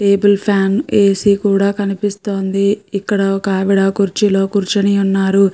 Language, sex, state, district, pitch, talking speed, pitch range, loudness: Telugu, female, Andhra Pradesh, Guntur, 200 Hz, 120 wpm, 195-200 Hz, -15 LUFS